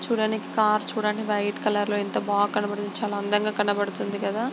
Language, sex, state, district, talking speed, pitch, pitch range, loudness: Telugu, female, Andhra Pradesh, Guntur, 160 wpm, 210 Hz, 205-215 Hz, -25 LUFS